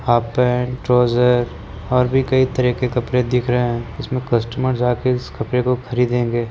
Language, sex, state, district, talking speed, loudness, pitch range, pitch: Hindi, male, Bihar, Kishanganj, 195 wpm, -18 LUFS, 120-125 Hz, 125 Hz